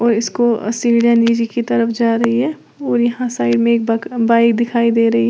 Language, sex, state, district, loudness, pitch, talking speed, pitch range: Hindi, female, Uttar Pradesh, Lalitpur, -15 LUFS, 235 Hz, 225 wpm, 230-235 Hz